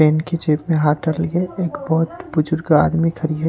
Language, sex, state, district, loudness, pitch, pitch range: Hindi, male, Bihar, Katihar, -19 LUFS, 160 Hz, 155-165 Hz